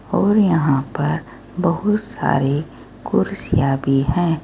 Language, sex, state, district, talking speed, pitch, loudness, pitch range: Hindi, female, Uttar Pradesh, Saharanpur, 110 wpm, 145 Hz, -19 LUFS, 135-175 Hz